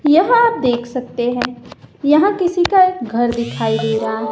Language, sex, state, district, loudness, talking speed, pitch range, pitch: Hindi, female, Madhya Pradesh, Umaria, -16 LUFS, 195 wpm, 235-355 Hz, 250 Hz